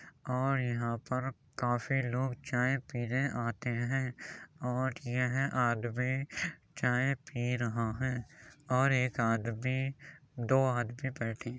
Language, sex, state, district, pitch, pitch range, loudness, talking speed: Hindi, male, Uttar Pradesh, Jyotiba Phule Nagar, 125 Hz, 120-130 Hz, -33 LUFS, 120 wpm